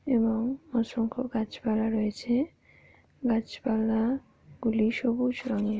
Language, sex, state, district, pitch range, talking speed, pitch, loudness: Bengali, female, West Bengal, Paschim Medinipur, 220-250 Hz, 95 wpm, 230 Hz, -29 LUFS